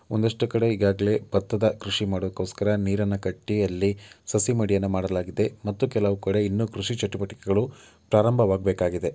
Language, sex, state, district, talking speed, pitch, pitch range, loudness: Kannada, male, Karnataka, Mysore, 125 wpm, 100 Hz, 100-110 Hz, -25 LUFS